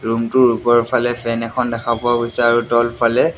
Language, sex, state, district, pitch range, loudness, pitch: Assamese, male, Assam, Sonitpur, 115-120 Hz, -16 LUFS, 120 Hz